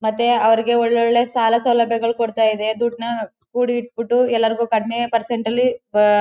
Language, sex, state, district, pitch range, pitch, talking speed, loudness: Kannada, female, Karnataka, Chamarajanagar, 225-240 Hz, 235 Hz, 135 wpm, -18 LUFS